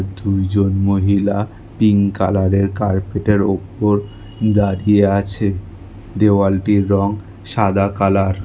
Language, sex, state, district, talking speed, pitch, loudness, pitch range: Bengali, male, West Bengal, Alipurduar, 90 wpm, 100 Hz, -16 LUFS, 95-105 Hz